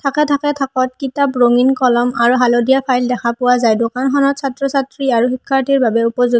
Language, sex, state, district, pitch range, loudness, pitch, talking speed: Assamese, female, Assam, Hailakandi, 240-275 Hz, -15 LUFS, 255 Hz, 180 wpm